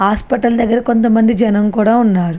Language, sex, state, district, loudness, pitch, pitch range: Telugu, female, Andhra Pradesh, Srikakulam, -13 LUFS, 230 Hz, 210-235 Hz